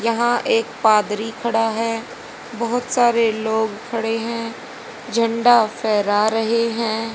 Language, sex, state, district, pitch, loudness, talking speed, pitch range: Hindi, female, Haryana, Jhajjar, 230 Hz, -19 LUFS, 115 wpm, 220-235 Hz